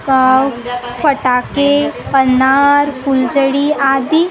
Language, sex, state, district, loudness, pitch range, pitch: Hindi, female, Maharashtra, Gondia, -13 LUFS, 260-285 Hz, 270 Hz